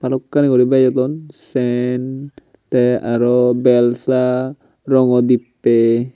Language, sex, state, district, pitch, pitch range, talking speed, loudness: Chakma, male, Tripura, Unakoti, 125 Hz, 125-130 Hz, 90 wpm, -15 LUFS